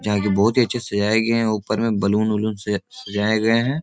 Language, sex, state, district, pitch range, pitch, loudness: Hindi, male, Bihar, Supaul, 105-115 Hz, 110 Hz, -20 LUFS